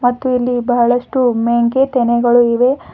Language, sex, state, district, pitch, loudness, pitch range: Kannada, female, Karnataka, Bidar, 245 Hz, -14 LUFS, 235-250 Hz